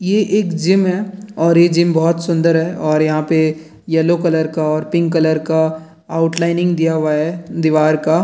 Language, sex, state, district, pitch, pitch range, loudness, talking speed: Hindi, male, Bihar, Jamui, 165 Hz, 160-170 Hz, -15 LUFS, 195 wpm